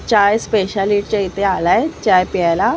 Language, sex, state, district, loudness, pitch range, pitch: Marathi, female, Maharashtra, Mumbai Suburban, -16 LUFS, 185-210 Hz, 200 Hz